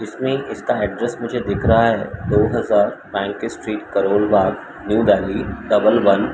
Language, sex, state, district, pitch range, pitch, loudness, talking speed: Hindi, male, Madhya Pradesh, Umaria, 105-120 Hz, 115 Hz, -18 LUFS, 170 wpm